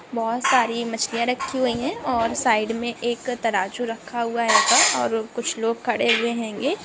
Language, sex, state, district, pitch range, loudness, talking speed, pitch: Hindi, female, Andhra Pradesh, Guntur, 230-245 Hz, -22 LUFS, 190 wpm, 235 Hz